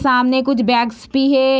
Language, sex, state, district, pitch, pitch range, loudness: Hindi, female, Bihar, Sitamarhi, 260 Hz, 245-270 Hz, -16 LUFS